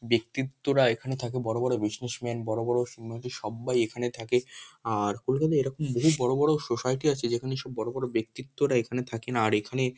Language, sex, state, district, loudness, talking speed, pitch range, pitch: Bengali, male, West Bengal, North 24 Parganas, -28 LUFS, 175 wpm, 115-130 Hz, 125 Hz